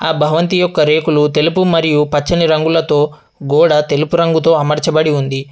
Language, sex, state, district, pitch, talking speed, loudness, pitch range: Telugu, male, Telangana, Adilabad, 155 Hz, 140 wpm, -13 LUFS, 150-165 Hz